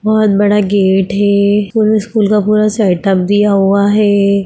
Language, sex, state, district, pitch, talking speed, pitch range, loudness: Hindi, female, Bihar, Gaya, 205 Hz, 160 wpm, 200-210 Hz, -11 LUFS